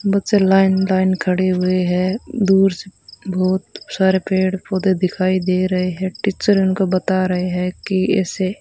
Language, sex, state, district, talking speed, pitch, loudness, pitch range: Hindi, female, Rajasthan, Bikaner, 165 wpm, 190 Hz, -18 LUFS, 185-195 Hz